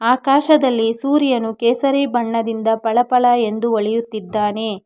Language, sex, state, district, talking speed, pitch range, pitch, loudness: Kannada, female, Karnataka, Bangalore, 100 wpm, 225-255 Hz, 230 Hz, -17 LUFS